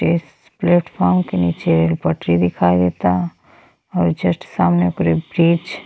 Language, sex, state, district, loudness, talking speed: Bhojpuri, female, Uttar Pradesh, Deoria, -17 LUFS, 135 wpm